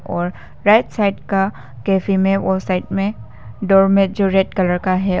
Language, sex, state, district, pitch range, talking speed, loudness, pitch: Hindi, female, Arunachal Pradesh, Papum Pare, 180-195 Hz, 175 wpm, -17 LUFS, 190 Hz